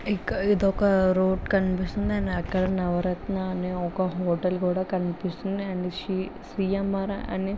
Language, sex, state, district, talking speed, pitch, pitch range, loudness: Telugu, female, Andhra Pradesh, Visakhapatnam, 85 wpm, 190 Hz, 185-195 Hz, -26 LUFS